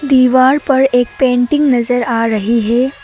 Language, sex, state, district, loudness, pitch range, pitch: Hindi, female, Assam, Kamrup Metropolitan, -12 LUFS, 240-265 Hz, 255 Hz